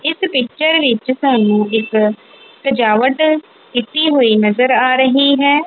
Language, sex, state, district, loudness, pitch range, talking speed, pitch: Punjabi, female, Punjab, Kapurthala, -14 LUFS, 225-300 Hz, 125 wpm, 255 Hz